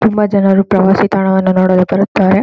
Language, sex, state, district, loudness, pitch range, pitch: Kannada, female, Karnataka, Shimoga, -11 LUFS, 190-200 Hz, 195 Hz